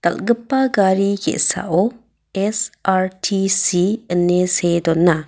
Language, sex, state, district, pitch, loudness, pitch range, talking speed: Garo, female, Meghalaya, West Garo Hills, 190 Hz, -18 LUFS, 175-210 Hz, 80 wpm